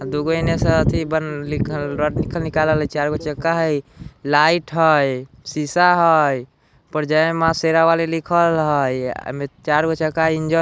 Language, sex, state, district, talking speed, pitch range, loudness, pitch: Hindi, male, Bihar, Muzaffarpur, 90 wpm, 145-165 Hz, -18 LUFS, 155 Hz